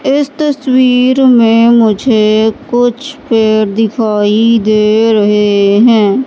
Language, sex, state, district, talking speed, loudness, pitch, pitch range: Hindi, female, Madhya Pradesh, Katni, 95 wpm, -9 LUFS, 225 Hz, 215-255 Hz